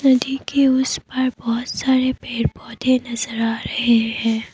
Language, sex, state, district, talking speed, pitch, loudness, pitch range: Hindi, female, Assam, Kamrup Metropolitan, 160 wpm, 245 Hz, -20 LUFS, 230-260 Hz